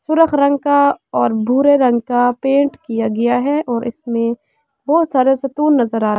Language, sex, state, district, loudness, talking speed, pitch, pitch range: Hindi, female, Delhi, New Delhi, -15 LUFS, 185 wpm, 260 Hz, 235-285 Hz